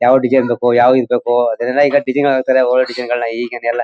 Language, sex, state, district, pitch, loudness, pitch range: Kannada, male, Karnataka, Mysore, 125 Hz, -14 LUFS, 120-130 Hz